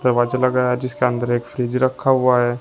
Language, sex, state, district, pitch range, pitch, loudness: Hindi, male, Uttar Pradesh, Shamli, 120-130 Hz, 125 Hz, -19 LUFS